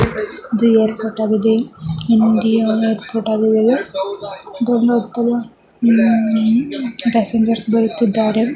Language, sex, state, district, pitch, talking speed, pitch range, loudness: Kannada, male, Karnataka, Mysore, 225 Hz, 55 wpm, 220-235 Hz, -16 LUFS